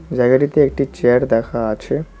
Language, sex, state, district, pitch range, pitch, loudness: Bengali, male, West Bengal, Cooch Behar, 120-140 Hz, 125 Hz, -16 LUFS